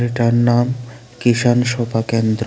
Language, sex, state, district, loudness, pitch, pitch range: Bengali, male, Tripura, West Tripura, -17 LUFS, 120 Hz, 115-120 Hz